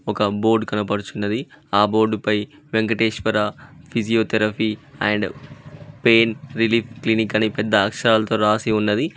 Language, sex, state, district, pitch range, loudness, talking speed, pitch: Telugu, male, Telangana, Mahabubabad, 105-115 Hz, -20 LUFS, 110 wpm, 110 Hz